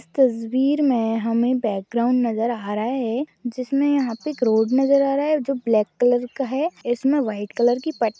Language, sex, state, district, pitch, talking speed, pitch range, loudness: Hindi, female, Chhattisgarh, Raigarh, 245 Hz, 200 wpm, 230-275 Hz, -21 LUFS